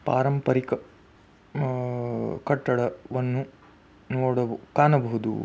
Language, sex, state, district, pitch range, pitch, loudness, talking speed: Kannada, male, Karnataka, Belgaum, 110-130 Hz, 125 Hz, -26 LUFS, 75 wpm